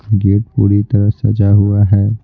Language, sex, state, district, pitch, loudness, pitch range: Hindi, male, Bihar, Patna, 105 Hz, -12 LUFS, 100-110 Hz